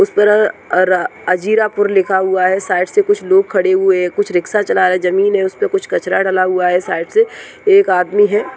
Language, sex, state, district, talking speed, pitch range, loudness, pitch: Hindi, male, Rajasthan, Nagaur, 225 wpm, 185-220 Hz, -14 LUFS, 195 Hz